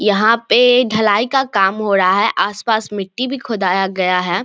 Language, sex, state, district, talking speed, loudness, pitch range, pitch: Hindi, female, Bihar, Samastipur, 190 wpm, -15 LUFS, 195-230 Hz, 210 Hz